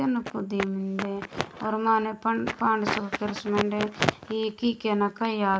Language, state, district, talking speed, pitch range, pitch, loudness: Gondi, Chhattisgarh, Sukma, 105 wpm, 200-220 Hz, 210 Hz, -27 LUFS